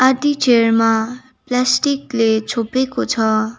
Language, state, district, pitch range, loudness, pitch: Nepali, West Bengal, Darjeeling, 225-260 Hz, -16 LUFS, 245 Hz